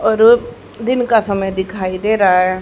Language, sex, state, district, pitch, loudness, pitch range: Hindi, female, Haryana, Charkhi Dadri, 205 Hz, -15 LUFS, 190-225 Hz